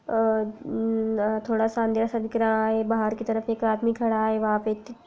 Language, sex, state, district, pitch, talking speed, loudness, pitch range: Hindi, female, Chhattisgarh, Kabirdham, 225 Hz, 215 wpm, -25 LUFS, 220-230 Hz